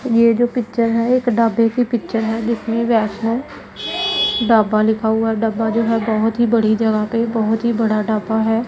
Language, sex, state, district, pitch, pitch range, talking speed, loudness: Hindi, female, Punjab, Pathankot, 225 Hz, 220-230 Hz, 195 wpm, -17 LUFS